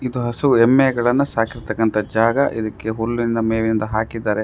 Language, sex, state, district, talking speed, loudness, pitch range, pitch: Kannada, male, Karnataka, Raichur, 120 wpm, -19 LUFS, 110-120 Hz, 115 Hz